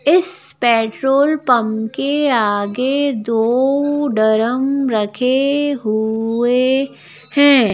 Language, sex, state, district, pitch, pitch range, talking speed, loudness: Hindi, female, Madhya Pradesh, Bhopal, 255 Hz, 225-280 Hz, 80 wpm, -16 LUFS